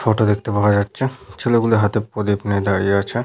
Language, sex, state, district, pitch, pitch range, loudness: Bengali, male, West Bengal, Paschim Medinipur, 105 Hz, 100-115 Hz, -19 LUFS